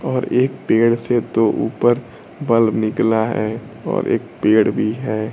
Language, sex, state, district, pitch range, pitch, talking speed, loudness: Hindi, male, Bihar, Kaimur, 110-120 Hz, 115 Hz, 155 wpm, -18 LUFS